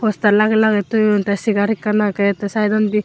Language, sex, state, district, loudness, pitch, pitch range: Chakma, female, Tripura, Unakoti, -16 LUFS, 210 Hz, 205-215 Hz